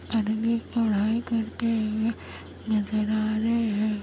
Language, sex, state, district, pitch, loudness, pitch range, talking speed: Hindi, female, Bihar, Kishanganj, 220 Hz, -26 LUFS, 215-230 Hz, 120 wpm